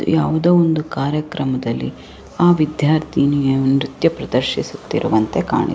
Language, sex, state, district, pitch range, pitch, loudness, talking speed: Kannada, female, Karnataka, Raichur, 135-155 Hz, 145 Hz, -18 LUFS, 95 wpm